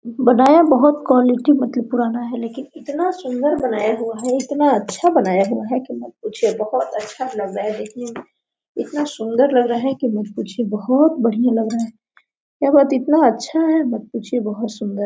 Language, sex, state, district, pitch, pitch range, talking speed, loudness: Hindi, female, Jharkhand, Sahebganj, 250 Hz, 230-285 Hz, 205 wpm, -18 LUFS